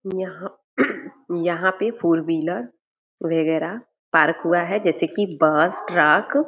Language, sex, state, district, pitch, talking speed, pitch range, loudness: Hindi, female, Bihar, Purnia, 175 Hz, 130 wpm, 165-200 Hz, -21 LUFS